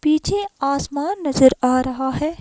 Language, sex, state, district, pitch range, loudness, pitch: Hindi, female, Himachal Pradesh, Shimla, 260-310 Hz, -19 LUFS, 280 Hz